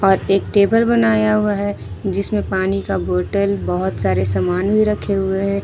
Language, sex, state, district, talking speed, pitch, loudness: Hindi, female, Jharkhand, Ranchi, 180 wpm, 185 Hz, -18 LUFS